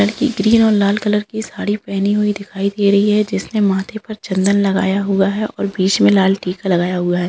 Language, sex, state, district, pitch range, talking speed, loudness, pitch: Hindi, female, Bihar, Kishanganj, 195-210 Hz, 230 wpm, -16 LUFS, 200 Hz